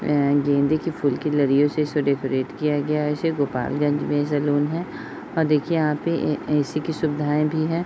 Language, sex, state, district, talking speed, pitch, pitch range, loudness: Hindi, female, Uttar Pradesh, Deoria, 215 wpm, 150 Hz, 145-155 Hz, -22 LUFS